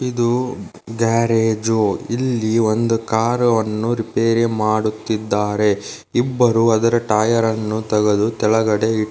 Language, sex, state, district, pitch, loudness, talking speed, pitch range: Kannada, male, Karnataka, Dharwad, 110 Hz, -18 LUFS, 105 wpm, 110-115 Hz